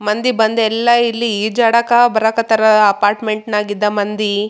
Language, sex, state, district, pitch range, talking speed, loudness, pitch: Kannada, female, Karnataka, Raichur, 210-230 Hz, 295 wpm, -14 LUFS, 220 Hz